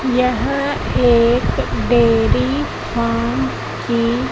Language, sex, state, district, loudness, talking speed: Hindi, female, Madhya Pradesh, Katni, -17 LUFS, 70 wpm